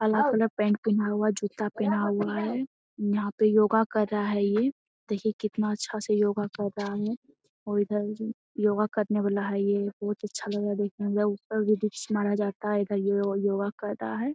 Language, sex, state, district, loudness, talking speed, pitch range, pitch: Hindi, female, Bihar, Jamui, -28 LUFS, 215 wpm, 205-215 Hz, 210 Hz